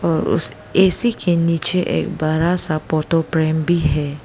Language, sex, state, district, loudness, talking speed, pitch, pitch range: Hindi, female, Arunachal Pradesh, Lower Dibang Valley, -18 LUFS, 170 wpm, 165 Hz, 155-175 Hz